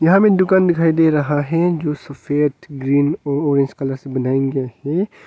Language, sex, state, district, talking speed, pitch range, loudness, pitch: Hindi, male, Arunachal Pradesh, Longding, 195 wpm, 135-165 Hz, -17 LUFS, 145 Hz